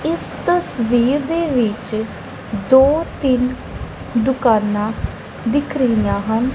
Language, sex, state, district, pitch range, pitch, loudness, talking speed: Punjabi, female, Punjab, Kapurthala, 220-280 Hz, 250 Hz, -18 LUFS, 90 wpm